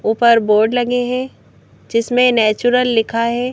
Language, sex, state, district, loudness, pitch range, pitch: Hindi, female, Madhya Pradesh, Bhopal, -15 LUFS, 225-245 Hz, 235 Hz